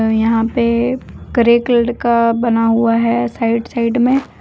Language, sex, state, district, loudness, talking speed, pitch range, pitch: Hindi, female, Jharkhand, Deoghar, -15 LUFS, 120 wpm, 230-240 Hz, 235 Hz